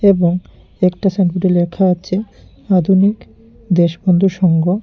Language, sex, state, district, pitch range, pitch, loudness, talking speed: Bengali, male, Tripura, Unakoti, 175-195 Hz, 185 Hz, -15 LUFS, 100 wpm